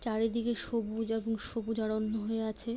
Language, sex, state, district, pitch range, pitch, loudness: Bengali, female, West Bengal, Jalpaiguri, 220-230 Hz, 225 Hz, -31 LUFS